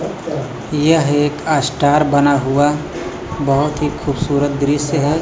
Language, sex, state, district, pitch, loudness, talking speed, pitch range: Hindi, male, Bihar, Kaimur, 145 Hz, -16 LUFS, 115 wpm, 140-150 Hz